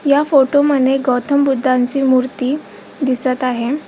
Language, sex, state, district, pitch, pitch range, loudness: Marathi, female, Maharashtra, Aurangabad, 270 Hz, 255-285 Hz, -15 LUFS